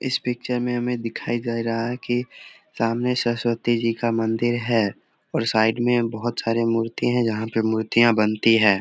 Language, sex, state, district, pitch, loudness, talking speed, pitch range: Hindi, male, Bihar, Samastipur, 115 Hz, -22 LUFS, 185 wpm, 115-120 Hz